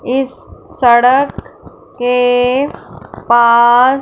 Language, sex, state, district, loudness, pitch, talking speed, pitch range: Hindi, female, Punjab, Fazilka, -11 LUFS, 245 Hz, 60 wpm, 240-260 Hz